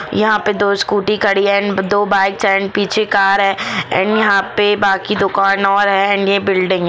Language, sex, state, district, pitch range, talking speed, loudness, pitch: Hindi, female, Jharkhand, Jamtara, 195-205 Hz, 190 wpm, -14 LUFS, 200 Hz